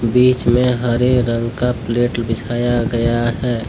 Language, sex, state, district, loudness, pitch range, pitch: Hindi, male, Jharkhand, Deoghar, -17 LUFS, 115-125 Hz, 120 Hz